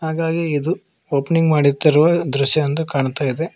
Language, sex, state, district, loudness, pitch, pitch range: Kannada, male, Karnataka, Koppal, -17 LUFS, 155 Hz, 140-165 Hz